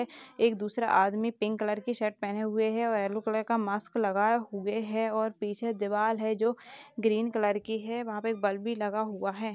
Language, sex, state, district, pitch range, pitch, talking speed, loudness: Hindi, female, Chhattisgarh, Rajnandgaon, 210-230 Hz, 220 Hz, 215 wpm, -30 LUFS